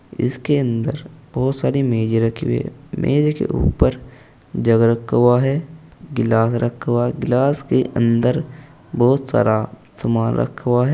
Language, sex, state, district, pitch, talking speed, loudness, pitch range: Hindi, male, Uttar Pradesh, Saharanpur, 125 Hz, 150 wpm, -19 LUFS, 115-140 Hz